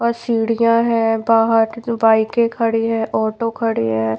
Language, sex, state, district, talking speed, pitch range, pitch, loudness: Hindi, female, Bihar, Patna, 145 wpm, 225-230 Hz, 225 Hz, -17 LUFS